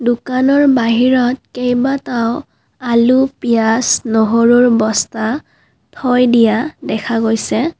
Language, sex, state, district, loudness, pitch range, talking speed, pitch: Assamese, female, Assam, Kamrup Metropolitan, -14 LUFS, 230-255 Hz, 85 wpm, 245 Hz